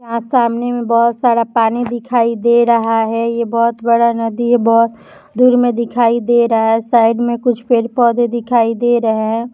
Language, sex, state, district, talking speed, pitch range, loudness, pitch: Hindi, female, Jharkhand, Jamtara, 195 wpm, 230-240 Hz, -14 LUFS, 235 Hz